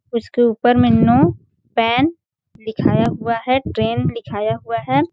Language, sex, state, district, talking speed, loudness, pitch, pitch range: Hindi, female, Chhattisgarh, Balrampur, 150 wpm, -17 LUFS, 230 Hz, 210-245 Hz